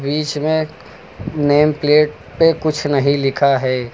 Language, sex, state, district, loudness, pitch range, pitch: Hindi, male, Uttar Pradesh, Lucknow, -16 LUFS, 140-155 Hz, 150 Hz